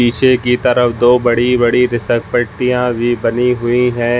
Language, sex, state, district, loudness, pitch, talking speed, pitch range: Hindi, male, Jharkhand, Jamtara, -13 LUFS, 120 Hz, 145 wpm, 120-125 Hz